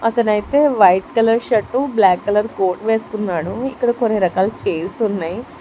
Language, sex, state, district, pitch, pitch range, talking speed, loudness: Telugu, female, Telangana, Hyderabad, 215 Hz, 190-235 Hz, 140 wpm, -17 LUFS